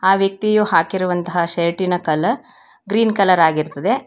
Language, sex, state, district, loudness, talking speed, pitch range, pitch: Kannada, female, Karnataka, Bangalore, -17 LUFS, 120 wpm, 170-215 Hz, 185 Hz